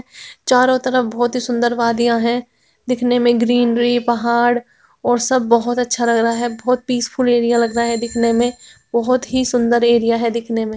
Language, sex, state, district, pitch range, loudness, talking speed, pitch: Hindi, female, Bihar, Begusarai, 235-245 Hz, -16 LUFS, 190 wpm, 240 Hz